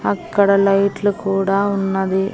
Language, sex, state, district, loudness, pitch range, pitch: Telugu, female, Andhra Pradesh, Annamaya, -17 LUFS, 195-200 Hz, 195 Hz